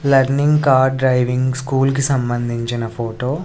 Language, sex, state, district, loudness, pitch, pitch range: Telugu, male, Andhra Pradesh, Sri Satya Sai, -17 LUFS, 130 Hz, 120-135 Hz